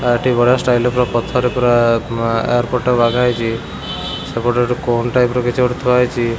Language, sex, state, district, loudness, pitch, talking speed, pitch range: Odia, male, Odisha, Khordha, -16 LUFS, 120 Hz, 215 wpm, 120-125 Hz